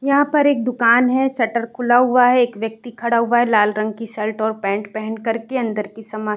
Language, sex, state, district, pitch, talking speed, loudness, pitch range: Hindi, female, Uttar Pradesh, Varanasi, 230 Hz, 245 wpm, -18 LUFS, 220-245 Hz